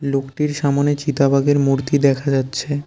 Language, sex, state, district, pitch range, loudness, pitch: Bengali, male, West Bengal, Cooch Behar, 135-145 Hz, -18 LUFS, 140 Hz